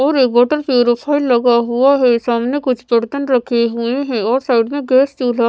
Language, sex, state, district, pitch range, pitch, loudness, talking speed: Hindi, female, Maharashtra, Mumbai Suburban, 235-275 Hz, 250 Hz, -15 LUFS, 205 wpm